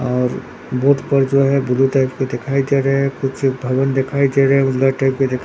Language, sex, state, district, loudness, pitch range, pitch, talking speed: Hindi, male, Bihar, Katihar, -17 LUFS, 130-135 Hz, 135 Hz, 255 wpm